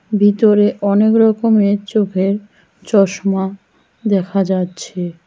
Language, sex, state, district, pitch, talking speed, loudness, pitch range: Bengali, female, West Bengal, Cooch Behar, 200 Hz, 80 wpm, -15 LUFS, 190-210 Hz